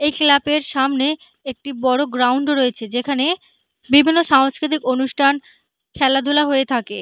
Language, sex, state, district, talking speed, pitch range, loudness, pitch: Bengali, female, West Bengal, Malda, 120 wpm, 260-295 Hz, -17 LUFS, 275 Hz